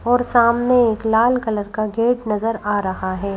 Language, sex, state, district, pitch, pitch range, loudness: Hindi, female, Madhya Pradesh, Bhopal, 225 Hz, 210-240 Hz, -18 LUFS